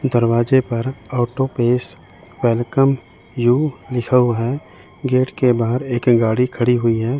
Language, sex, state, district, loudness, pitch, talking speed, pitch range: Hindi, male, Chandigarh, Chandigarh, -18 LUFS, 120 Hz, 160 wpm, 120-130 Hz